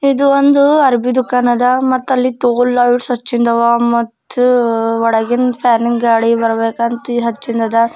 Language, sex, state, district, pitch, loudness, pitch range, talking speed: Kannada, female, Karnataka, Bidar, 240 Hz, -13 LUFS, 235-255 Hz, 105 wpm